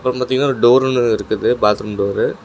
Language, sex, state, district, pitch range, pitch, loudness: Tamil, male, Tamil Nadu, Namakkal, 105-130 Hz, 125 Hz, -16 LUFS